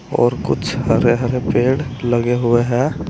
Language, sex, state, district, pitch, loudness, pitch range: Hindi, male, Uttar Pradesh, Saharanpur, 120 Hz, -17 LUFS, 120-130 Hz